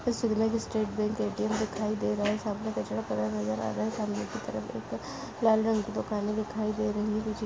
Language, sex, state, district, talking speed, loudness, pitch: Hindi, female, Goa, North and South Goa, 215 wpm, -31 LUFS, 215 Hz